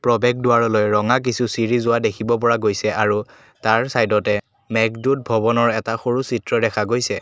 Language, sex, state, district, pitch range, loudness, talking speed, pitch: Assamese, male, Assam, Kamrup Metropolitan, 110-120 Hz, -19 LUFS, 150 wpm, 115 Hz